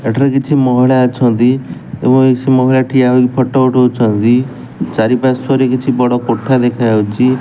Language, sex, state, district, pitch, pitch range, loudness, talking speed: Odia, male, Odisha, Nuapada, 125 Hz, 120-130 Hz, -12 LUFS, 155 wpm